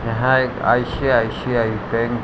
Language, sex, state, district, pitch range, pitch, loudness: Hindi, male, Uttar Pradesh, Ghazipur, 115-125 Hz, 120 Hz, -19 LUFS